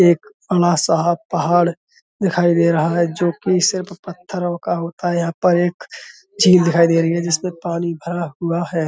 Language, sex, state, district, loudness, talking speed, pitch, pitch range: Hindi, male, Uttar Pradesh, Budaun, -18 LUFS, 170 wpm, 175 Hz, 170-180 Hz